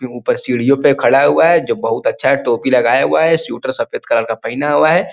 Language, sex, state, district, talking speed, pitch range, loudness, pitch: Hindi, male, Uttar Pradesh, Ghazipur, 255 wpm, 120-140 Hz, -14 LUFS, 130 Hz